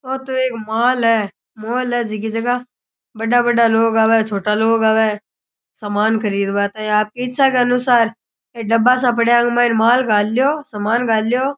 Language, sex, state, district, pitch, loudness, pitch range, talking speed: Rajasthani, male, Rajasthan, Churu, 230 Hz, -16 LUFS, 220-245 Hz, 185 wpm